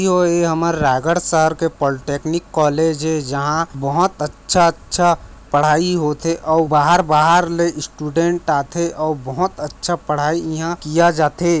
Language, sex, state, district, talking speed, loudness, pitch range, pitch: Chhattisgarhi, male, Chhattisgarh, Raigarh, 130 wpm, -17 LUFS, 150-170 Hz, 160 Hz